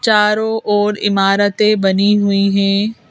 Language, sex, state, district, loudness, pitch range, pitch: Hindi, female, Madhya Pradesh, Bhopal, -14 LUFS, 200-215 Hz, 205 Hz